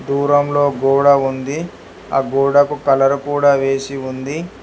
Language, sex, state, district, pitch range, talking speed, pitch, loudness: Telugu, male, Telangana, Hyderabad, 135-145 Hz, 115 wpm, 140 Hz, -16 LUFS